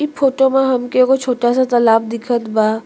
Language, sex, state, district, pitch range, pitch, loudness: Bhojpuri, female, Uttar Pradesh, Deoria, 230-265 Hz, 245 Hz, -15 LUFS